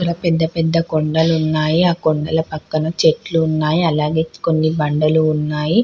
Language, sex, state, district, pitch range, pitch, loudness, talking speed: Telugu, female, Andhra Pradesh, Chittoor, 155-165 Hz, 160 Hz, -17 LUFS, 135 wpm